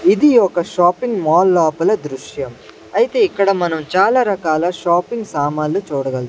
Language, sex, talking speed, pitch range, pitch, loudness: Telugu, male, 135 wpm, 155-220 Hz, 175 Hz, -16 LUFS